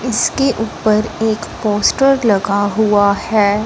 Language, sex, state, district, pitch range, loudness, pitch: Hindi, female, Punjab, Fazilka, 205-230 Hz, -15 LUFS, 215 Hz